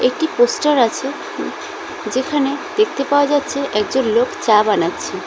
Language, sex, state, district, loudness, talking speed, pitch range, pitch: Bengali, female, West Bengal, Cooch Behar, -17 LUFS, 125 wpm, 240-295 Hz, 275 Hz